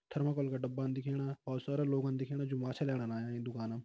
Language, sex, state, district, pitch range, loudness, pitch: Hindi, male, Uttarakhand, Tehri Garhwal, 130-140 Hz, -37 LUFS, 135 Hz